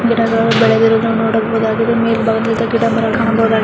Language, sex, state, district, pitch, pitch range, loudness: Kannada, female, Karnataka, Mysore, 225 Hz, 225-230 Hz, -14 LUFS